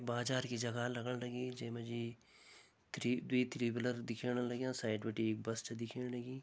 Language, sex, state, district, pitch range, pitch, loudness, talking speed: Garhwali, male, Uttarakhand, Tehri Garhwal, 115-125 Hz, 120 Hz, -40 LUFS, 185 wpm